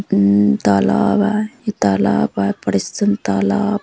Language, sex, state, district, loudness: Halbi, female, Chhattisgarh, Bastar, -16 LUFS